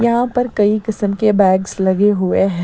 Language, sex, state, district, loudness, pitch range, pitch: Hindi, female, Bihar, West Champaran, -15 LUFS, 190-220 Hz, 205 Hz